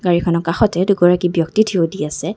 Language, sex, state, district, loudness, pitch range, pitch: Assamese, female, Assam, Kamrup Metropolitan, -16 LUFS, 165-195 Hz, 175 Hz